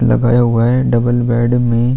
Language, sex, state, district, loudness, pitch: Hindi, male, Chhattisgarh, Kabirdham, -13 LUFS, 120 Hz